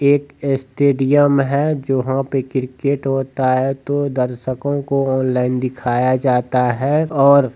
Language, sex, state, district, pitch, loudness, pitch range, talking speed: Hindi, male, Bihar, Jamui, 135 Hz, -17 LUFS, 130-140 Hz, 135 wpm